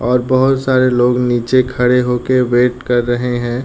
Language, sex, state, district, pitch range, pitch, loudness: Hindi, male, Uttar Pradesh, Deoria, 120-130 Hz, 125 Hz, -14 LUFS